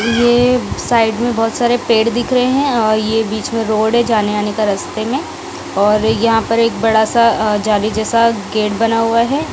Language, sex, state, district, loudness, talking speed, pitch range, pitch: Hindi, female, Punjab, Kapurthala, -14 LUFS, 200 wpm, 215-240 Hz, 225 Hz